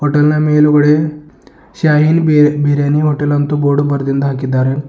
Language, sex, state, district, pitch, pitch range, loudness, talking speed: Kannada, male, Karnataka, Bidar, 150 Hz, 145-150 Hz, -12 LUFS, 135 wpm